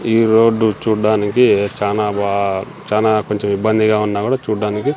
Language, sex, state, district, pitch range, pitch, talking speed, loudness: Telugu, male, Andhra Pradesh, Sri Satya Sai, 100-110 Hz, 105 Hz, 135 wpm, -16 LUFS